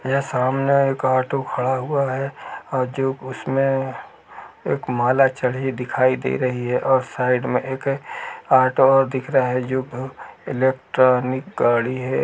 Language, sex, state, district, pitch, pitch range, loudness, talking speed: Hindi, male, Uttar Pradesh, Jalaun, 130 Hz, 125-135 Hz, -20 LUFS, 140 wpm